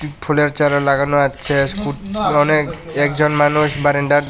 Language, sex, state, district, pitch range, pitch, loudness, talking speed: Bengali, male, Tripura, West Tripura, 145-150 Hz, 145 Hz, -16 LUFS, 125 wpm